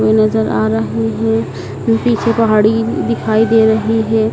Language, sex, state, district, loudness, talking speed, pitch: Hindi, male, Madhya Pradesh, Dhar, -14 LUFS, 165 wpm, 215 Hz